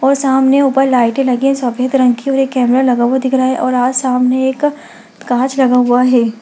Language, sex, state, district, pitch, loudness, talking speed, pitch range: Hindi, female, Bihar, Gaya, 260 Hz, -13 LUFS, 235 wpm, 245-270 Hz